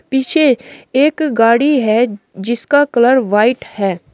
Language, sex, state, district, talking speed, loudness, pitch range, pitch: Hindi, female, Uttar Pradesh, Shamli, 115 wpm, -14 LUFS, 220-280 Hz, 245 Hz